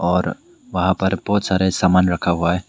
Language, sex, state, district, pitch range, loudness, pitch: Hindi, male, Meghalaya, West Garo Hills, 90-95 Hz, -19 LUFS, 95 Hz